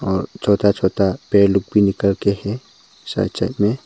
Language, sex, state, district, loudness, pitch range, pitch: Hindi, male, Arunachal Pradesh, Papum Pare, -18 LUFS, 100-105 Hz, 100 Hz